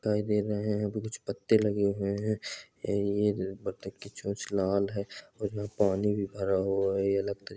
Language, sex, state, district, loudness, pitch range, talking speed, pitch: Hindi, male, Bihar, East Champaran, -30 LUFS, 100-105 Hz, 175 wpm, 100 Hz